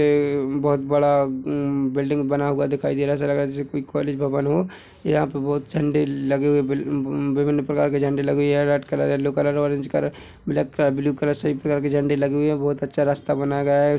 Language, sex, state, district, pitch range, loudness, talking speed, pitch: Hindi, male, Chhattisgarh, Bilaspur, 140-145 Hz, -22 LUFS, 250 wpm, 145 Hz